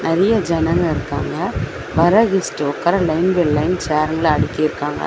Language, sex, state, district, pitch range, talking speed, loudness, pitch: Tamil, female, Tamil Nadu, Chennai, 155-180 Hz, 130 wpm, -17 LUFS, 165 Hz